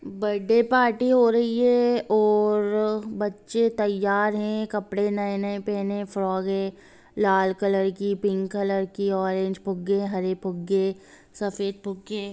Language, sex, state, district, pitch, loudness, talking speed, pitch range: Hindi, female, Bihar, Sitamarhi, 200 Hz, -24 LUFS, 125 wpm, 195-215 Hz